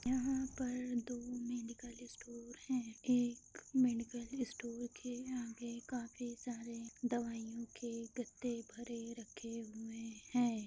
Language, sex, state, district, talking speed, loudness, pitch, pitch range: Hindi, female, Bihar, Madhepura, 110 wpm, -42 LUFS, 240 Hz, 230-245 Hz